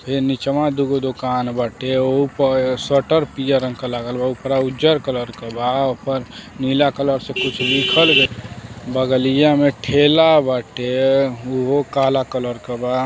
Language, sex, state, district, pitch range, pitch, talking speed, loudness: Bhojpuri, male, Uttar Pradesh, Deoria, 125-140 Hz, 130 Hz, 155 wpm, -18 LUFS